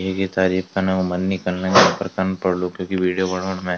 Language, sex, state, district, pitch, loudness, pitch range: Garhwali, male, Uttarakhand, Tehri Garhwal, 95 Hz, -20 LUFS, 90-95 Hz